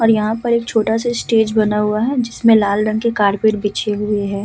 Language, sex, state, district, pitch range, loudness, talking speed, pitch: Hindi, female, Uttar Pradesh, Hamirpur, 210-230 Hz, -16 LUFS, 230 wpm, 220 Hz